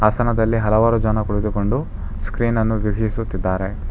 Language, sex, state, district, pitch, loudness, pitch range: Kannada, male, Karnataka, Bangalore, 110 Hz, -20 LUFS, 95-115 Hz